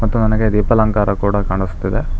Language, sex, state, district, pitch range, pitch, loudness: Kannada, male, Karnataka, Bangalore, 100-110 Hz, 105 Hz, -17 LUFS